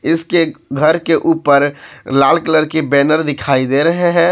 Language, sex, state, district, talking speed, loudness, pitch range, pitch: Hindi, male, Jharkhand, Ranchi, 165 wpm, -14 LUFS, 140-165 Hz, 155 Hz